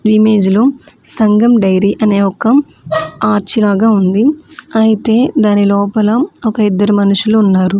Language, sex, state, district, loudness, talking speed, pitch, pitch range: Telugu, female, Andhra Pradesh, Manyam, -11 LUFS, 130 wpm, 215 Hz, 200-235 Hz